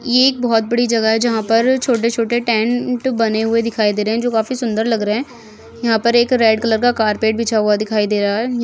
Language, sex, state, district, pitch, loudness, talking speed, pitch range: Hindi, female, Goa, North and South Goa, 230 Hz, -16 LUFS, 250 wpm, 220-240 Hz